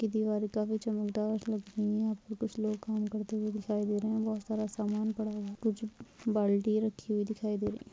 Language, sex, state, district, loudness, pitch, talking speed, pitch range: Hindi, female, Rajasthan, Churu, -34 LUFS, 215 Hz, 225 wpm, 210-220 Hz